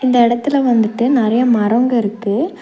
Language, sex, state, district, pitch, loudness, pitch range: Tamil, female, Tamil Nadu, Nilgiris, 240 Hz, -15 LUFS, 225-250 Hz